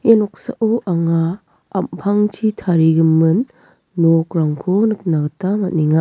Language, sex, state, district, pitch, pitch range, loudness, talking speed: Garo, female, Meghalaya, West Garo Hills, 180 Hz, 160-210 Hz, -17 LUFS, 90 wpm